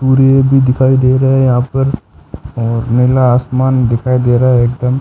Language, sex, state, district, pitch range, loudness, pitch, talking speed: Hindi, male, Rajasthan, Bikaner, 120-130 Hz, -11 LUFS, 125 Hz, 190 wpm